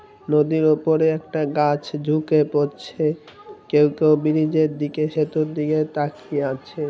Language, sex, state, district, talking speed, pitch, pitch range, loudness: Bengali, male, West Bengal, North 24 Parganas, 120 wpm, 155 Hz, 150-155 Hz, -21 LUFS